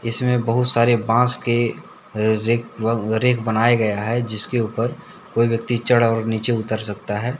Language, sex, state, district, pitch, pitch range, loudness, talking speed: Hindi, male, Jharkhand, Deoghar, 115 Hz, 110-120 Hz, -20 LUFS, 155 wpm